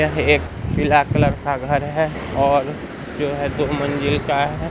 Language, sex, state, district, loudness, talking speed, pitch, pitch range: Hindi, male, Bihar, Bhagalpur, -19 LUFS, 180 wpm, 140 Hz, 130-145 Hz